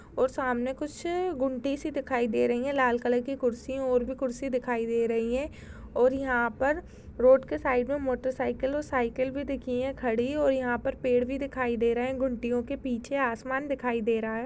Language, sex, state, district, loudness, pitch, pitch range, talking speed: Hindi, female, Bihar, Purnia, -28 LUFS, 260 Hz, 245-275 Hz, 215 wpm